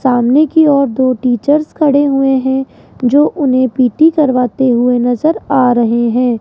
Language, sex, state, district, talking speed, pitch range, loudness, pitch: Hindi, female, Rajasthan, Jaipur, 170 wpm, 245-285 Hz, -12 LUFS, 260 Hz